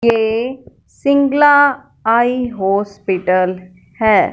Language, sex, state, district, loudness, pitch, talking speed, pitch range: Hindi, female, Punjab, Fazilka, -15 LUFS, 225 Hz, 70 wpm, 195-260 Hz